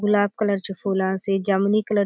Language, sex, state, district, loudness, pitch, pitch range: Halbi, female, Chhattisgarh, Bastar, -22 LUFS, 200 Hz, 195-205 Hz